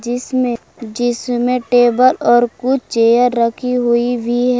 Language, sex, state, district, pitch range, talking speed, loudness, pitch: Hindi, female, Jharkhand, Palamu, 235-250 Hz, 130 wpm, -15 LUFS, 245 Hz